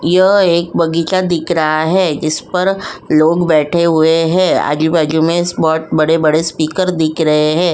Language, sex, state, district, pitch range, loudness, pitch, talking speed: Hindi, female, Uttar Pradesh, Jyotiba Phule Nagar, 155-175 Hz, -13 LUFS, 165 Hz, 165 wpm